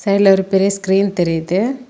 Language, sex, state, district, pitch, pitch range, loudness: Tamil, female, Tamil Nadu, Kanyakumari, 195 Hz, 190-200 Hz, -15 LUFS